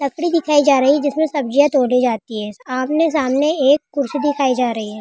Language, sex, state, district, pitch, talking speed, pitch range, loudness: Hindi, female, Rajasthan, Churu, 280 Hz, 205 wpm, 255-290 Hz, -17 LUFS